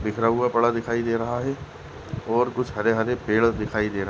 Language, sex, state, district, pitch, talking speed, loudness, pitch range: Hindi, male, Goa, North and South Goa, 115 Hz, 235 wpm, -24 LUFS, 110-120 Hz